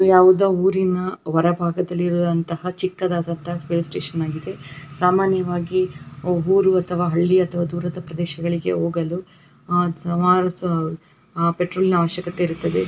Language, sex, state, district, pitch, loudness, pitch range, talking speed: Kannada, female, Karnataka, Raichur, 175 Hz, -21 LUFS, 170-180 Hz, 105 wpm